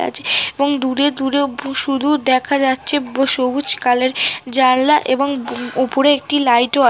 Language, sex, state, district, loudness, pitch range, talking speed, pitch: Bengali, female, West Bengal, North 24 Parganas, -16 LUFS, 255-285 Hz, 155 wpm, 270 Hz